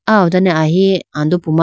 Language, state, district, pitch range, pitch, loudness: Idu Mishmi, Arunachal Pradesh, Lower Dibang Valley, 160-190 Hz, 180 Hz, -13 LUFS